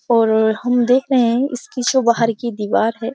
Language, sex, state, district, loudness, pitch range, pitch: Hindi, female, Uttar Pradesh, Jyotiba Phule Nagar, -17 LUFS, 225-250 Hz, 235 Hz